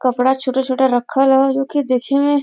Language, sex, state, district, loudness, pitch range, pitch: Bhojpuri, female, Uttar Pradesh, Varanasi, -16 LUFS, 255-275 Hz, 265 Hz